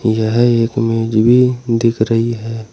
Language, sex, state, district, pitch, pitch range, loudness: Hindi, male, Uttar Pradesh, Saharanpur, 115 Hz, 115-120 Hz, -14 LUFS